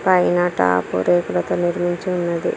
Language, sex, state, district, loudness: Telugu, female, Telangana, Komaram Bheem, -19 LUFS